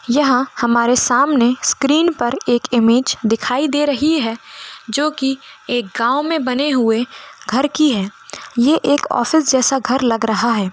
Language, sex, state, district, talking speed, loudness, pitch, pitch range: Hindi, female, Goa, North and South Goa, 160 wpm, -16 LUFS, 255 Hz, 235-285 Hz